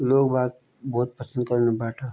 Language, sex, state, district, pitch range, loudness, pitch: Garhwali, male, Uttarakhand, Tehri Garhwal, 120-130 Hz, -25 LUFS, 125 Hz